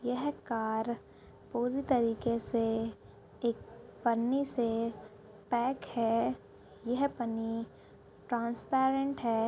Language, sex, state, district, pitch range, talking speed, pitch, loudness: Hindi, female, Uttarakhand, Tehri Garhwal, 225-250 Hz, 95 wpm, 235 Hz, -33 LUFS